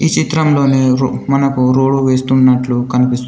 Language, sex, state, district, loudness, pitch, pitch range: Telugu, male, Telangana, Komaram Bheem, -13 LUFS, 130 Hz, 125-135 Hz